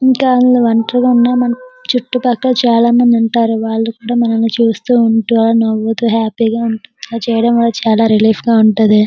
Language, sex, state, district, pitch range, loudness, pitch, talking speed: Telugu, female, Andhra Pradesh, Srikakulam, 225-245 Hz, -12 LUFS, 230 Hz, 160 wpm